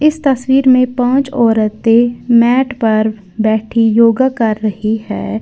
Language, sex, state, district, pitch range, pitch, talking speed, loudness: Hindi, female, Uttar Pradesh, Lalitpur, 220-255 Hz, 230 Hz, 135 wpm, -13 LUFS